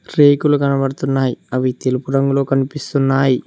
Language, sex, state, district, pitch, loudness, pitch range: Telugu, male, Telangana, Mahabubabad, 135 Hz, -16 LUFS, 130-140 Hz